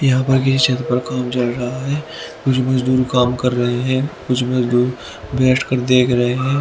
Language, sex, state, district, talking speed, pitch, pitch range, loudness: Hindi, male, Haryana, Rohtak, 200 wpm, 125 Hz, 125-130 Hz, -17 LUFS